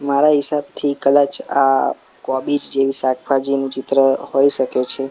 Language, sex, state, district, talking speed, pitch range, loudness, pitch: Gujarati, male, Gujarat, Gandhinagar, 130 wpm, 135-140 Hz, -17 LUFS, 135 Hz